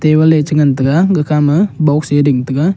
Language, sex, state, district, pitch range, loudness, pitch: Wancho, male, Arunachal Pradesh, Longding, 145-160 Hz, -12 LUFS, 150 Hz